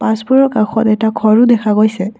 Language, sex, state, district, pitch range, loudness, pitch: Assamese, female, Assam, Kamrup Metropolitan, 215-225 Hz, -12 LUFS, 220 Hz